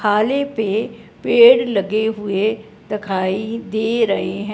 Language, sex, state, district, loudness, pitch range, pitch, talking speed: Hindi, male, Punjab, Fazilka, -17 LUFS, 205-230 Hz, 215 Hz, 105 wpm